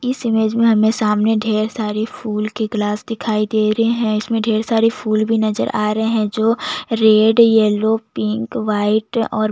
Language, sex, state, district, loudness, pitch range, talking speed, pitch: Hindi, female, Chhattisgarh, Jashpur, -17 LUFS, 215-225 Hz, 190 wpm, 220 Hz